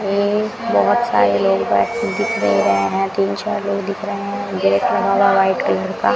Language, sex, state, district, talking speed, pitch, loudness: Hindi, female, Rajasthan, Bikaner, 215 wpm, 195 Hz, -17 LUFS